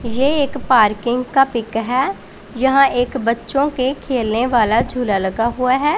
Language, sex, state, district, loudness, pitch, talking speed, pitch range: Hindi, female, Punjab, Pathankot, -17 LUFS, 250 Hz, 160 wpm, 230-270 Hz